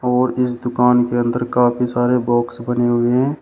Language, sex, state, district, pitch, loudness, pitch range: Hindi, male, Uttar Pradesh, Shamli, 125 Hz, -17 LUFS, 120-125 Hz